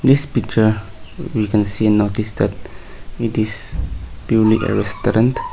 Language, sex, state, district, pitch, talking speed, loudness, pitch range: English, male, Nagaland, Kohima, 110 Hz, 130 wpm, -18 LUFS, 100-115 Hz